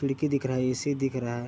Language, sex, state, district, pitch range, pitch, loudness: Hindi, male, Chhattisgarh, Bilaspur, 130-140 Hz, 130 Hz, -28 LUFS